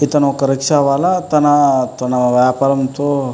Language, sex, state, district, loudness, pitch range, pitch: Telugu, male, Andhra Pradesh, Anantapur, -14 LUFS, 130-145 Hz, 140 Hz